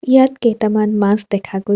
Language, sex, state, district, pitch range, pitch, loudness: Assamese, female, Assam, Kamrup Metropolitan, 200-235 Hz, 215 Hz, -15 LUFS